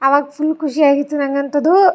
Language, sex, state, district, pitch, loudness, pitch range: Kannada, female, Karnataka, Chamarajanagar, 290 Hz, -16 LUFS, 280-310 Hz